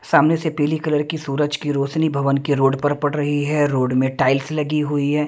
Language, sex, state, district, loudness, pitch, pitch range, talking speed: Hindi, male, Delhi, New Delhi, -19 LUFS, 145 Hz, 140-150 Hz, 240 wpm